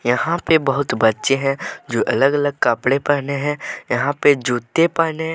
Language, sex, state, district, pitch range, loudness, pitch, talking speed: Hindi, male, Jharkhand, Deoghar, 135-145 Hz, -18 LUFS, 140 Hz, 170 wpm